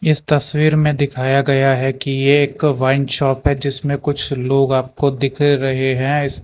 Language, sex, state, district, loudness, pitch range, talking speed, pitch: Hindi, male, Karnataka, Bangalore, -16 LUFS, 135-145 Hz, 175 wpm, 140 Hz